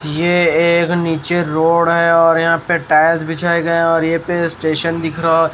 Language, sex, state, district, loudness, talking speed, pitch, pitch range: Hindi, male, Haryana, Rohtak, -14 LUFS, 195 wpm, 165 Hz, 165-170 Hz